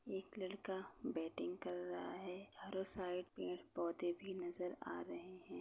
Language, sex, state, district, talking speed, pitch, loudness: Hindi, female, Chhattisgarh, Bastar, 160 wpm, 180 Hz, -46 LUFS